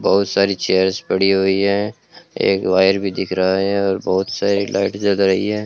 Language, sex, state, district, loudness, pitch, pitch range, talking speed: Hindi, male, Rajasthan, Bikaner, -17 LUFS, 95 Hz, 95-100 Hz, 200 wpm